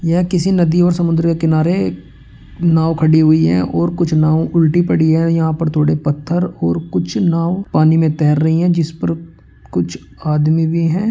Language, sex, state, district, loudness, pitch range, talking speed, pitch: Hindi, male, Uttar Pradesh, Muzaffarnagar, -15 LUFS, 150-170 Hz, 190 wpm, 160 Hz